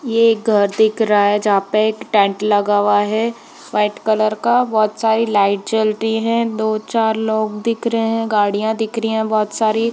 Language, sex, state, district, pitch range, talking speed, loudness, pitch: Hindi, female, Jharkhand, Jamtara, 210-225 Hz, 180 wpm, -17 LUFS, 220 Hz